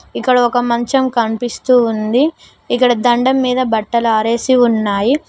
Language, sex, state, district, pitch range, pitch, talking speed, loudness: Telugu, female, Telangana, Mahabubabad, 230-255 Hz, 245 Hz, 125 wpm, -14 LUFS